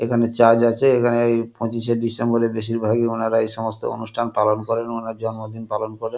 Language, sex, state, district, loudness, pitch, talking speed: Bengali, male, West Bengal, Kolkata, -20 LUFS, 115 Hz, 185 wpm